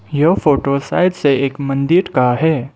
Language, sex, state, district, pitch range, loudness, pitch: Hindi, male, Mizoram, Aizawl, 135-160 Hz, -15 LUFS, 145 Hz